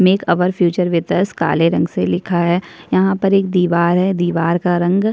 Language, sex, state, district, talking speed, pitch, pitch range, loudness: Hindi, female, Chhattisgarh, Kabirdham, 210 wpm, 180 Hz, 170-185 Hz, -16 LUFS